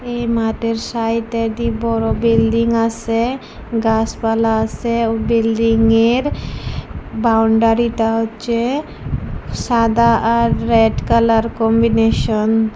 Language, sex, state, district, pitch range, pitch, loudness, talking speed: Bengali, female, Tripura, West Tripura, 225-230 Hz, 230 Hz, -16 LUFS, 105 wpm